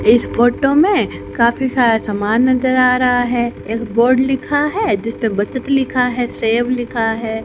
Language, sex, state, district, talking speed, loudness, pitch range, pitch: Hindi, female, Haryana, Jhajjar, 170 wpm, -16 LUFS, 225-260 Hz, 245 Hz